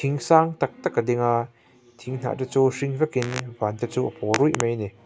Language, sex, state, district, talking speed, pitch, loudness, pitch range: Mizo, male, Mizoram, Aizawl, 250 wpm, 125 Hz, -24 LUFS, 120-140 Hz